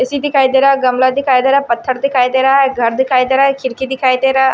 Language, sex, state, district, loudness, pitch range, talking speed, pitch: Hindi, female, Punjab, Kapurthala, -13 LUFS, 255-275 Hz, 305 wpm, 265 Hz